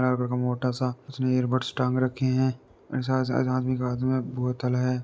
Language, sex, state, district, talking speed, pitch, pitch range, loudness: Hindi, male, Uttar Pradesh, Deoria, 215 wpm, 130 Hz, 125-130 Hz, -27 LUFS